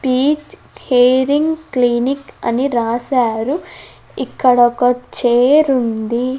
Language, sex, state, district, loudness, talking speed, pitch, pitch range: Telugu, female, Andhra Pradesh, Sri Satya Sai, -15 LUFS, 85 wpm, 255 Hz, 240-280 Hz